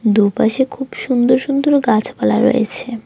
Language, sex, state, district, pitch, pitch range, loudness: Bengali, female, Tripura, West Tripura, 245 Hz, 220-265 Hz, -15 LUFS